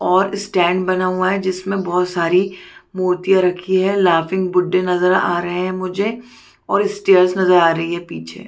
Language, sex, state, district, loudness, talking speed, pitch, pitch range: Hindi, female, Chhattisgarh, Bastar, -17 LUFS, 185 wpm, 185 Hz, 180-190 Hz